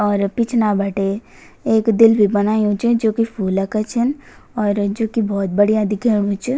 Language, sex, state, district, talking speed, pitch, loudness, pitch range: Garhwali, female, Uttarakhand, Tehri Garhwal, 165 wpm, 215 Hz, -17 LUFS, 205-225 Hz